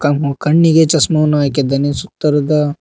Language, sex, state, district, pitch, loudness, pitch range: Kannada, male, Karnataka, Koppal, 150 Hz, -13 LUFS, 145-155 Hz